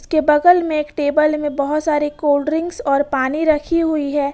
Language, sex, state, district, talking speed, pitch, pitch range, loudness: Hindi, female, Jharkhand, Ranchi, 195 wpm, 300 Hz, 290-315 Hz, -17 LUFS